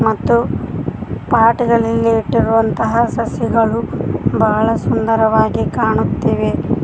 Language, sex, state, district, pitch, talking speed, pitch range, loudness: Kannada, female, Karnataka, Koppal, 225 Hz, 70 wpm, 225-230 Hz, -15 LUFS